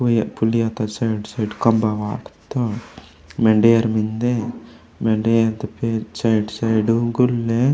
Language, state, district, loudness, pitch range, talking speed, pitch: Gondi, Chhattisgarh, Sukma, -20 LUFS, 110-115 Hz, 130 wpm, 115 Hz